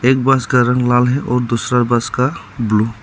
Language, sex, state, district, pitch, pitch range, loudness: Hindi, male, Arunachal Pradesh, Lower Dibang Valley, 125 Hz, 120-125 Hz, -15 LUFS